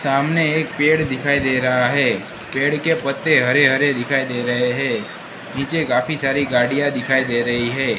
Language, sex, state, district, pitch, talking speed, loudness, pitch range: Hindi, male, Gujarat, Gandhinagar, 135 Hz, 180 wpm, -18 LUFS, 125-145 Hz